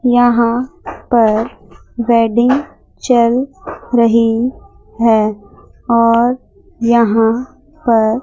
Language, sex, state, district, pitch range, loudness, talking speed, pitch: Hindi, female, Chandigarh, Chandigarh, 230-250 Hz, -13 LUFS, 65 wpm, 235 Hz